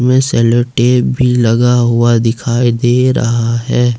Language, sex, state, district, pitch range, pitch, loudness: Hindi, male, Jharkhand, Ranchi, 115-125 Hz, 120 Hz, -12 LUFS